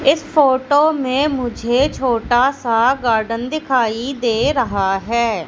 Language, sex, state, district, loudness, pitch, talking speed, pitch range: Hindi, female, Madhya Pradesh, Katni, -17 LUFS, 250 Hz, 120 wpm, 230-275 Hz